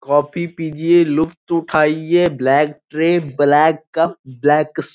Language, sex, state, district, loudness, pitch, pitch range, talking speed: Hindi, male, Bihar, Gopalganj, -16 LUFS, 160 Hz, 150-165 Hz, 120 wpm